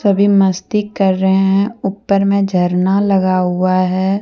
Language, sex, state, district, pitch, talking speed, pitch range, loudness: Hindi, female, Jharkhand, Deoghar, 195 Hz, 140 wpm, 185-200 Hz, -14 LUFS